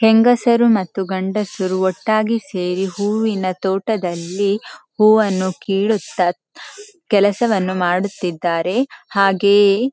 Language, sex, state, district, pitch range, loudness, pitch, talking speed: Kannada, female, Karnataka, Dakshina Kannada, 185-220 Hz, -17 LUFS, 200 Hz, 75 wpm